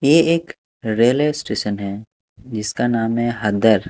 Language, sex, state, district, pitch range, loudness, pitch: Hindi, male, Maharashtra, Mumbai Suburban, 105-125 Hz, -19 LUFS, 115 Hz